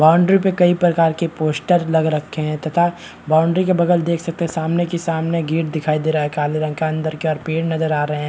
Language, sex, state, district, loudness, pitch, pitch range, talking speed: Hindi, male, Bihar, Kishanganj, -18 LUFS, 160 Hz, 155-170 Hz, 255 wpm